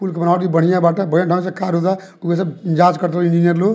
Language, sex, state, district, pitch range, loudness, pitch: Bhojpuri, male, Bihar, Muzaffarpur, 170-185 Hz, -16 LUFS, 175 Hz